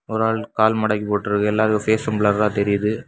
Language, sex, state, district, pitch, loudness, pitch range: Tamil, male, Tamil Nadu, Kanyakumari, 105 Hz, -20 LUFS, 105-110 Hz